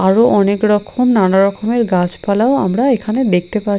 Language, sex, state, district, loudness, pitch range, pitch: Bengali, female, Odisha, Khordha, -14 LUFS, 195-235 Hz, 210 Hz